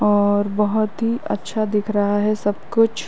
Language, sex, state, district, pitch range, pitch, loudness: Hindi, female, Uttar Pradesh, Varanasi, 205-215 Hz, 210 Hz, -20 LUFS